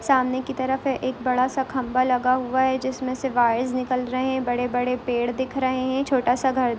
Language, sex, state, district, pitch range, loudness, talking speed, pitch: Hindi, female, Jharkhand, Sahebganj, 250-260 Hz, -23 LUFS, 220 wpm, 255 Hz